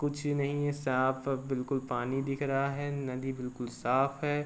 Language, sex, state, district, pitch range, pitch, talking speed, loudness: Hindi, male, Uttar Pradesh, Varanasi, 130-145 Hz, 135 Hz, 175 wpm, -32 LUFS